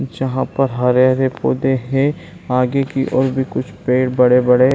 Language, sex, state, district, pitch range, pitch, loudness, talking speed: Hindi, male, Bihar, Saran, 125-135 Hz, 130 Hz, -16 LUFS, 165 wpm